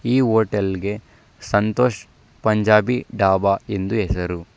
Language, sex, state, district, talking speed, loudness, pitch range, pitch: Kannada, male, Karnataka, Bangalore, 90 wpm, -20 LUFS, 100-115 Hz, 105 Hz